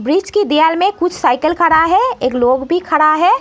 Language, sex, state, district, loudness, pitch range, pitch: Hindi, female, Uttar Pradesh, Muzaffarnagar, -13 LUFS, 305-360 Hz, 325 Hz